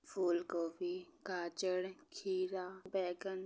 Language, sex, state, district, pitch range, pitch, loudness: Hindi, female, Chhattisgarh, Bastar, 180-190 Hz, 185 Hz, -40 LUFS